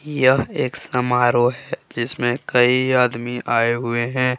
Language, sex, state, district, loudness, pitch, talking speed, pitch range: Hindi, male, Jharkhand, Deoghar, -19 LUFS, 125 Hz, 135 wpm, 120-130 Hz